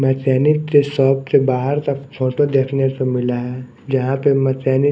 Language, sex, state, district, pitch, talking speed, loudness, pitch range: Hindi, male, Odisha, Nuapada, 135 Hz, 185 wpm, -17 LUFS, 130-140 Hz